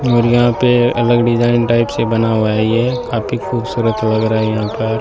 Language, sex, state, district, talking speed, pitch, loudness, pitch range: Hindi, male, Rajasthan, Bikaner, 215 wpm, 115 Hz, -14 LUFS, 110-120 Hz